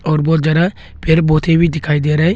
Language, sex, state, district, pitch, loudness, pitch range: Hindi, male, Arunachal Pradesh, Longding, 160 Hz, -14 LUFS, 155-170 Hz